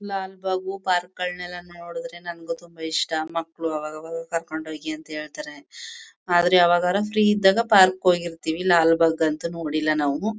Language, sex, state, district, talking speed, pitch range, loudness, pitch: Kannada, female, Karnataka, Mysore, 140 wpm, 160-185 Hz, -23 LUFS, 170 Hz